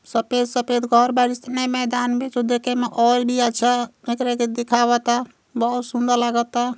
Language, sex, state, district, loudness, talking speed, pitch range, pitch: Bhojpuri, female, Uttar Pradesh, Gorakhpur, -20 LUFS, 175 wpm, 240-245 Hz, 245 Hz